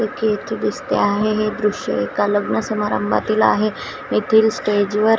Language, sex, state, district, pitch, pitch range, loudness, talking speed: Marathi, female, Maharashtra, Washim, 215 Hz, 205-220 Hz, -19 LUFS, 160 wpm